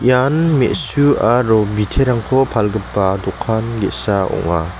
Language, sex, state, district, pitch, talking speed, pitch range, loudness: Garo, male, Meghalaya, West Garo Hills, 110 Hz, 100 wpm, 100-130 Hz, -16 LUFS